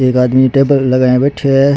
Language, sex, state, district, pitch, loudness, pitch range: Rajasthani, male, Rajasthan, Churu, 130 Hz, -11 LUFS, 130-140 Hz